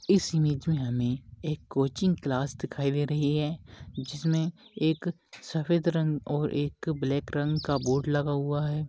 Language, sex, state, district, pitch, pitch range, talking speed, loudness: Hindi, male, Maharashtra, Pune, 150 Hz, 140-160 Hz, 170 wpm, -29 LUFS